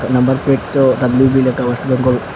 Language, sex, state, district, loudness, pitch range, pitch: Bengali, male, Assam, Hailakandi, -14 LUFS, 125-130 Hz, 130 Hz